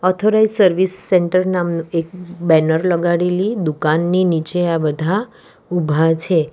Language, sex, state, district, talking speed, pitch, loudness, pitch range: Gujarati, female, Gujarat, Valsad, 120 wpm, 175 Hz, -16 LUFS, 165-185 Hz